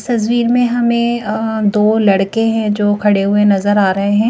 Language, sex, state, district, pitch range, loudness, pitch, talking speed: Hindi, female, Madhya Pradesh, Bhopal, 205-235 Hz, -14 LUFS, 215 Hz, 195 wpm